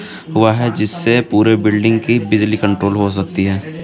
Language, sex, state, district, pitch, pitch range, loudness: Hindi, male, Jharkhand, Garhwa, 105 Hz, 100-115 Hz, -14 LUFS